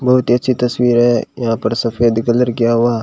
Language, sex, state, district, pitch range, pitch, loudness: Hindi, male, Rajasthan, Bikaner, 115-125 Hz, 120 Hz, -15 LUFS